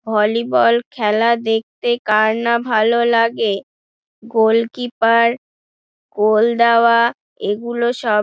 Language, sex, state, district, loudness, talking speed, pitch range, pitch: Bengali, female, West Bengal, Dakshin Dinajpur, -16 LUFS, 95 wpm, 220-235 Hz, 230 Hz